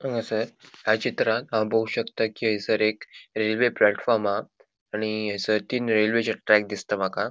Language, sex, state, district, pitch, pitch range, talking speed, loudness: Konkani, male, Goa, North and South Goa, 110 Hz, 105-110 Hz, 155 wpm, -25 LUFS